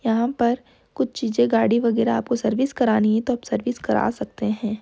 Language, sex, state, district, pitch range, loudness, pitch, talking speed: Hindi, female, Bihar, Jamui, 225-245 Hz, -22 LUFS, 235 Hz, 200 wpm